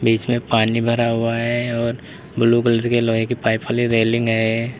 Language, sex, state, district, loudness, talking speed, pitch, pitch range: Hindi, male, Uttar Pradesh, Lalitpur, -18 LUFS, 190 wpm, 115 Hz, 115-120 Hz